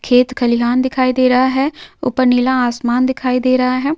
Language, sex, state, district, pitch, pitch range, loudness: Hindi, female, Jharkhand, Sahebganj, 255 Hz, 250-260 Hz, -15 LUFS